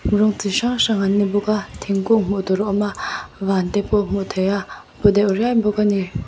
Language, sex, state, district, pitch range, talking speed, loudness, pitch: Mizo, female, Mizoram, Aizawl, 195-210 Hz, 260 wpm, -19 LUFS, 205 Hz